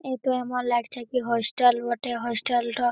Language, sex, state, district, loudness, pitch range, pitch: Bengali, female, West Bengal, Malda, -25 LUFS, 235-250 Hz, 245 Hz